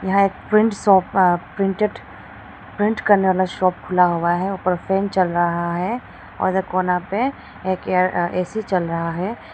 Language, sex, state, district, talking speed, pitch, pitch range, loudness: Hindi, female, Arunachal Pradesh, Lower Dibang Valley, 175 wpm, 185 Hz, 180-200 Hz, -20 LUFS